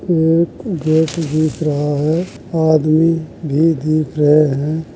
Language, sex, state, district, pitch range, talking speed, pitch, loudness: Hindi, male, Uttar Pradesh, Jalaun, 150-165 Hz, 110 wpm, 155 Hz, -16 LUFS